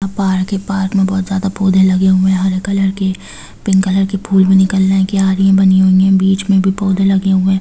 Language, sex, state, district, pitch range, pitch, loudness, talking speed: Hindi, female, Bihar, Gopalganj, 190-195 Hz, 190 Hz, -13 LUFS, 245 wpm